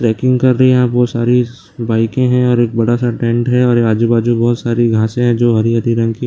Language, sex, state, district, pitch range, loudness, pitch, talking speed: Hindi, male, Bihar, Lakhisarai, 115-125 Hz, -13 LUFS, 120 Hz, 240 wpm